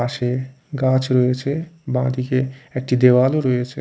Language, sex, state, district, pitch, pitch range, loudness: Bengali, male, Odisha, Khordha, 130 Hz, 125-130 Hz, -19 LUFS